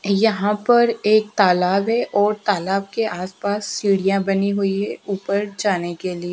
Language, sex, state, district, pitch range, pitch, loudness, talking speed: Hindi, female, Bihar, Kaimur, 195-210 Hz, 200 Hz, -20 LUFS, 170 wpm